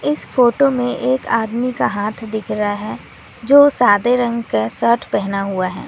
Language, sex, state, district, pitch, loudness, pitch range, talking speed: Hindi, female, West Bengal, Alipurduar, 235 Hz, -16 LUFS, 210-250 Hz, 185 wpm